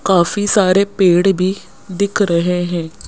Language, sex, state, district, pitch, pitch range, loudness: Hindi, female, Rajasthan, Jaipur, 185 Hz, 175-200 Hz, -15 LUFS